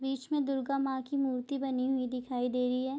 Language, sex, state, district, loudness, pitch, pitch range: Hindi, female, Bihar, Bhagalpur, -33 LUFS, 265 Hz, 250-275 Hz